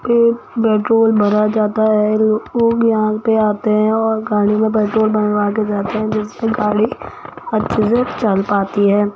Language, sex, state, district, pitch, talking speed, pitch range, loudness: Hindi, female, Rajasthan, Jaipur, 215 Hz, 155 wpm, 210-220 Hz, -15 LUFS